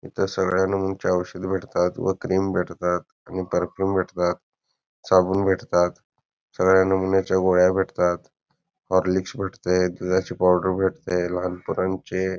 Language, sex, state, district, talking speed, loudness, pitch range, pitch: Marathi, male, Karnataka, Belgaum, 115 wpm, -23 LUFS, 90-95 Hz, 95 Hz